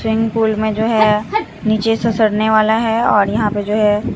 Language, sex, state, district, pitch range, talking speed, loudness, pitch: Hindi, female, Bihar, Katihar, 215-225 Hz, 200 wpm, -15 LUFS, 220 Hz